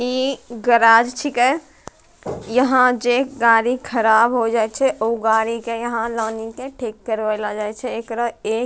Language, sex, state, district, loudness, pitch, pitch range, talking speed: Angika, female, Bihar, Bhagalpur, -18 LUFS, 235 Hz, 225-250 Hz, 160 wpm